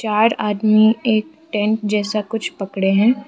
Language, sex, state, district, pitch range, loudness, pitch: Hindi, female, Arunachal Pradesh, Lower Dibang Valley, 210-220 Hz, -18 LUFS, 215 Hz